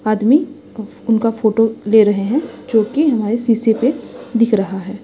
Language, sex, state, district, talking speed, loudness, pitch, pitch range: Hindi, female, Odisha, Sambalpur, 155 wpm, -16 LUFS, 225 Hz, 215-250 Hz